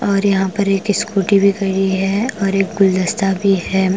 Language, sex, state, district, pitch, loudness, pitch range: Hindi, female, Punjab, Kapurthala, 195 Hz, -16 LUFS, 190-200 Hz